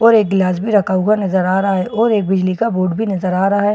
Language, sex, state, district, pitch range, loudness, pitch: Hindi, female, Bihar, Katihar, 185-215 Hz, -15 LUFS, 195 Hz